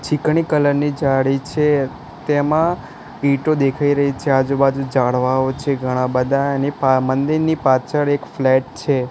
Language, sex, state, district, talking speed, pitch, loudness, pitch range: Gujarati, male, Gujarat, Gandhinagar, 145 wpm, 140 Hz, -18 LUFS, 130-145 Hz